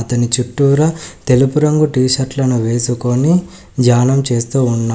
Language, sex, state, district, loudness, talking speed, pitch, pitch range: Telugu, male, Telangana, Hyderabad, -14 LUFS, 135 wpm, 130 Hz, 120-140 Hz